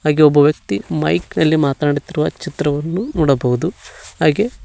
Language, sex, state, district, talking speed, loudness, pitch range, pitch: Kannada, male, Karnataka, Koppal, 130 wpm, -17 LUFS, 140-160 Hz, 150 Hz